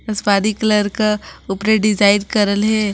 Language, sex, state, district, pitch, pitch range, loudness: Chhattisgarhi, female, Chhattisgarh, Sarguja, 210 Hz, 205-215 Hz, -16 LUFS